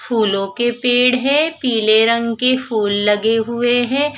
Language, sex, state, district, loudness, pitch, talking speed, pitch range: Hindi, female, Punjab, Fazilka, -15 LUFS, 240 Hz, 160 wpm, 220-250 Hz